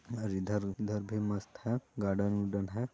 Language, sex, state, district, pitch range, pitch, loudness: Hindi, male, Chhattisgarh, Balrampur, 100-110 Hz, 105 Hz, -35 LUFS